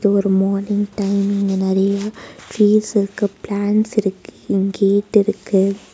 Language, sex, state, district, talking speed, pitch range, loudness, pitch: Tamil, female, Tamil Nadu, Nilgiris, 120 wpm, 195-205 Hz, -18 LUFS, 200 Hz